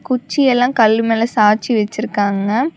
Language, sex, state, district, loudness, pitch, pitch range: Tamil, female, Tamil Nadu, Namakkal, -15 LUFS, 225 Hz, 215-250 Hz